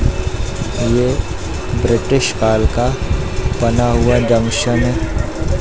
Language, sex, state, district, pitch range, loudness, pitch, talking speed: Hindi, male, Madhya Pradesh, Katni, 95-120 Hz, -16 LUFS, 115 Hz, 95 wpm